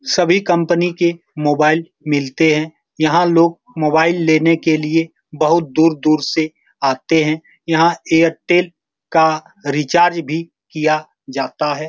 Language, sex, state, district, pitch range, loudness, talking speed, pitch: Hindi, male, Bihar, Saran, 155-170 Hz, -16 LUFS, 125 wpm, 160 Hz